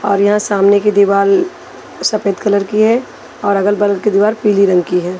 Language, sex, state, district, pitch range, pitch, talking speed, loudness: Hindi, female, Haryana, Rohtak, 200-210 Hz, 205 Hz, 210 wpm, -13 LUFS